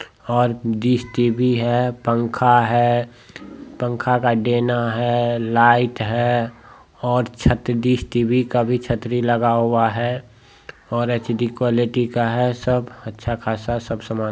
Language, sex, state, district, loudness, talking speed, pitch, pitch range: Hindi, male, Bihar, Jamui, -19 LUFS, 140 wpm, 120 Hz, 115-120 Hz